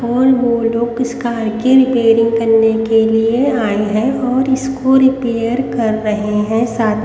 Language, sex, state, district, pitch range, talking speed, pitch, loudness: Hindi, female, Haryana, Rohtak, 225-255 Hz, 160 wpm, 235 Hz, -14 LUFS